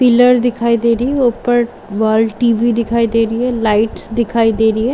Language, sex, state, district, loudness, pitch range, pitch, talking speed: Hindi, female, Jharkhand, Sahebganj, -14 LUFS, 225-240 Hz, 235 Hz, 205 wpm